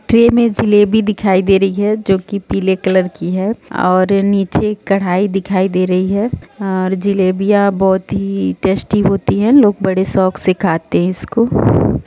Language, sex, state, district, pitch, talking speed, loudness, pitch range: Hindi, female, Jharkhand, Sahebganj, 195 Hz, 170 wpm, -14 LUFS, 185-205 Hz